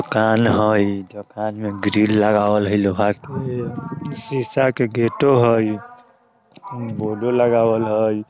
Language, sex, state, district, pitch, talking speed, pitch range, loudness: Bajjika, male, Bihar, Vaishali, 110 Hz, 115 wpm, 105-125 Hz, -19 LUFS